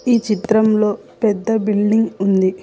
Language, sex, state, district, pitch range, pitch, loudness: Telugu, female, Telangana, Hyderabad, 205-220 Hz, 215 Hz, -17 LUFS